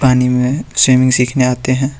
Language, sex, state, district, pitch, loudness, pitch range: Hindi, male, Jharkhand, Deoghar, 130 Hz, -13 LUFS, 125-130 Hz